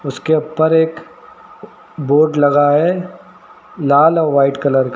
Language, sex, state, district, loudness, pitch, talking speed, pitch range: Hindi, male, Uttar Pradesh, Lucknow, -14 LUFS, 155 Hz, 135 wpm, 140-160 Hz